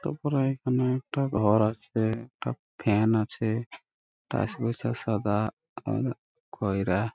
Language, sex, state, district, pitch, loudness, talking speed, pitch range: Bengali, male, West Bengal, Purulia, 115 Hz, -28 LUFS, 125 wpm, 105-135 Hz